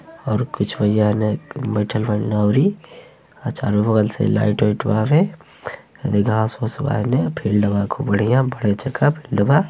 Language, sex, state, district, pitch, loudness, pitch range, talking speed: Bhojpuri, male, Uttar Pradesh, Gorakhpur, 110 Hz, -19 LUFS, 105-135 Hz, 155 wpm